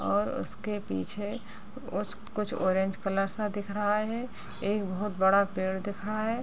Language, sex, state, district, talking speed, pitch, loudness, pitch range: Hindi, female, Bihar, Madhepura, 175 wpm, 205 Hz, -30 LUFS, 195-210 Hz